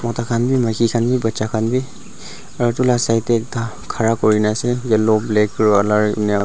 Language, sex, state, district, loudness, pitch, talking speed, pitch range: Nagamese, male, Nagaland, Dimapur, -17 LUFS, 115 Hz, 185 wpm, 110-120 Hz